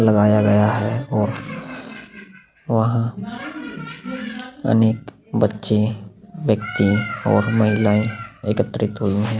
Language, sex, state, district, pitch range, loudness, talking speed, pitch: Hindi, male, Maharashtra, Aurangabad, 105-170 Hz, -20 LUFS, 85 wpm, 110 Hz